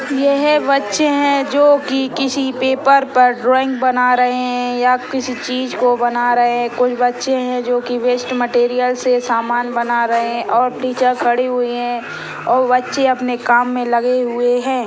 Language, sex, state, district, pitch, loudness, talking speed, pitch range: Hindi, female, Bihar, Saran, 250 Hz, -16 LUFS, 175 wpm, 245-260 Hz